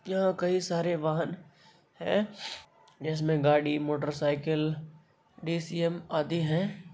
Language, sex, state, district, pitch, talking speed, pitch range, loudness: Hindi, male, Bihar, Bhagalpur, 170 Hz, 85 wpm, 155-175 Hz, -30 LUFS